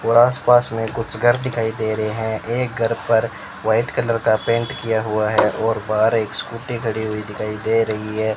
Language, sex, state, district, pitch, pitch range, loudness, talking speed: Hindi, male, Rajasthan, Bikaner, 110 Hz, 110-115 Hz, -20 LUFS, 210 wpm